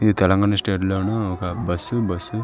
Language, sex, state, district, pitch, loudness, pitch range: Telugu, male, Telangana, Karimnagar, 100 Hz, -21 LUFS, 95-105 Hz